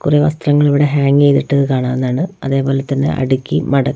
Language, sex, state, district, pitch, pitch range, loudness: Malayalam, female, Kerala, Wayanad, 140 Hz, 135-145 Hz, -14 LUFS